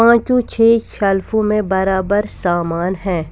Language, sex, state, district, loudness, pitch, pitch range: Hindi, female, Punjab, Kapurthala, -16 LUFS, 195 Hz, 185-225 Hz